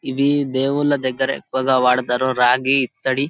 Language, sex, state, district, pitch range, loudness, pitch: Telugu, male, Telangana, Karimnagar, 130-140 Hz, -18 LUFS, 130 Hz